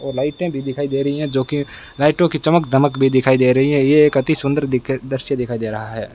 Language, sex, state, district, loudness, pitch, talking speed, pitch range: Hindi, male, Rajasthan, Bikaner, -17 LUFS, 135 Hz, 275 wpm, 130-145 Hz